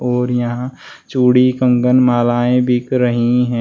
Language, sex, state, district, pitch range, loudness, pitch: Hindi, male, Uttar Pradesh, Shamli, 120-125 Hz, -15 LUFS, 125 Hz